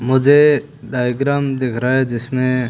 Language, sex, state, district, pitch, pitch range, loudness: Hindi, male, Rajasthan, Bikaner, 130 Hz, 125-140 Hz, -16 LUFS